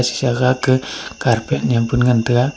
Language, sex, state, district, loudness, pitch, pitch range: Wancho, male, Arunachal Pradesh, Longding, -17 LUFS, 125 Hz, 120-130 Hz